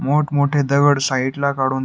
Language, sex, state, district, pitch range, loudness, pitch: Marathi, male, Maharashtra, Pune, 135-145 Hz, -17 LUFS, 140 Hz